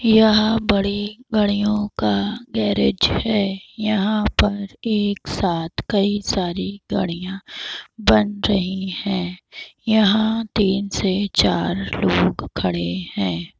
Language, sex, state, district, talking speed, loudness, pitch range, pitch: Hindi, female, Bihar, Madhepura, 100 wpm, -20 LUFS, 165-210 Hz, 200 Hz